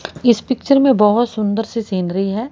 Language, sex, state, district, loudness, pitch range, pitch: Hindi, female, Haryana, Rohtak, -16 LUFS, 210-245 Hz, 225 Hz